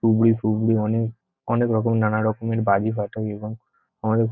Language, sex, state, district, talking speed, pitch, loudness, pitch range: Bengali, male, West Bengal, North 24 Parganas, 150 wpm, 110 Hz, -22 LUFS, 110-115 Hz